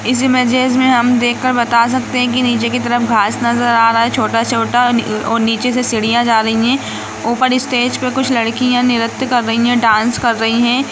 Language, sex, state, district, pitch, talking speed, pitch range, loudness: Hindi, female, Jharkhand, Sahebganj, 240 Hz, 215 wpm, 230-250 Hz, -13 LUFS